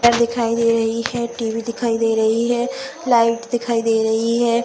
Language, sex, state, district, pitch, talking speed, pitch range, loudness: Hindi, female, Bihar, Saharsa, 230 Hz, 180 wpm, 230-235 Hz, -19 LUFS